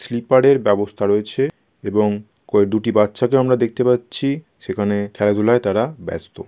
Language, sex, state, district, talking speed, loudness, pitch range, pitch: Bengali, male, West Bengal, Kolkata, 150 wpm, -18 LUFS, 105-125 Hz, 110 Hz